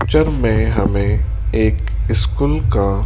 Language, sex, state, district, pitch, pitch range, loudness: Hindi, male, Rajasthan, Jaipur, 105 Hz, 100-110 Hz, -17 LUFS